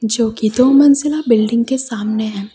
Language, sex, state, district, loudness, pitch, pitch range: Hindi, female, Uttar Pradesh, Lucknow, -14 LUFS, 230 Hz, 215-265 Hz